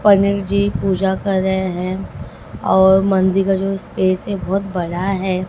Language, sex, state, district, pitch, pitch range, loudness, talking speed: Hindi, female, Maharashtra, Mumbai Suburban, 190 Hz, 185-195 Hz, -17 LUFS, 165 wpm